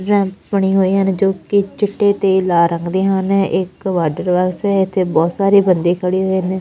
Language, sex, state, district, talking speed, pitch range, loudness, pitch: Punjabi, female, Punjab, Fazilka, 210 wpm, 180-195 Hz, -16 LUFS, 190 Hz